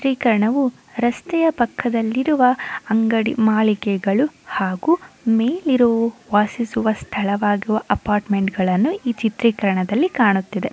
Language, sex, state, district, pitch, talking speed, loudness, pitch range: Kannada, female, Karnataka, Mysore, 230 Hz, 80 wpm, -19 LUFS, 210-255 Hz